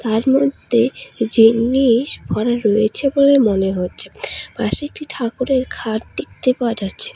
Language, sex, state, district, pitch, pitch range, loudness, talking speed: Bengali, female, West Bengal, Alipurduar, 240 Hz, 220-270 Hz, -17 LUFS, 125 wpm